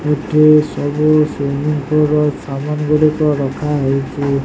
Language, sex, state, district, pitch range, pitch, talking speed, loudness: Odia, male, Odisha, Sambalpur, 140-150 Hz, 150 Hz, 110 wpm, -15 LUFS